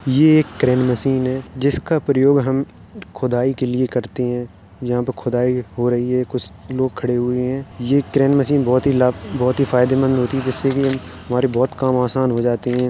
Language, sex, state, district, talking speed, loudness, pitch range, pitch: Hindi, male, Uttar Pradesh, Jalaun, 195 wpm, -18 LUFS, 125-135 Hz, 125 Hz